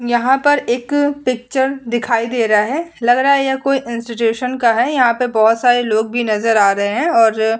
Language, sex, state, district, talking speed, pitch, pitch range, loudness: Hindi, female, Bihar, Vaishali, 220 wpm, 240 Hz, 230-265 Hz, -15 LUFS